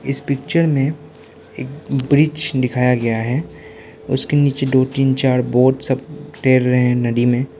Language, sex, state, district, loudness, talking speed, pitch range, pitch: Hindi, male, Arunachal Pradesh, Lower Dibang Valley, -17 LUFS, 160 wpm, 125-145 Hz, 135 Hz